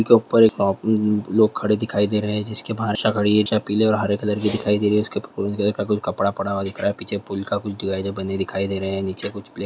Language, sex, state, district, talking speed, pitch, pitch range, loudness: Hindi, male, Andhra Pradesh, Guntur, 255 wpm, 105 Hz, 100-105 Hz, -21 LUFS